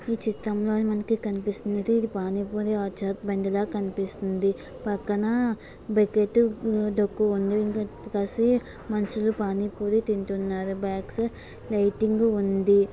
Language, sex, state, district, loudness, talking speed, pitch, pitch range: Telugu, female, Andhra Pradesh, Visakhapatnam, -26 LUFS, 35 wpm, 210 Hz, 200-220 Hz